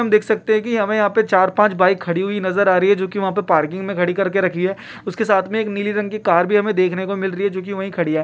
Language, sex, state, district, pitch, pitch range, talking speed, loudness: Bhojpuri, male, Bihar, Saran, 195 Hz, 185-210 Hz, 335 wpm, -18 LUFS